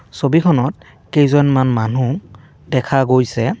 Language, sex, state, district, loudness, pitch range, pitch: Assamese, male, Assam, Kamrup Metropolitan, -16 LUFS, 125-145 Hz, 135 Hz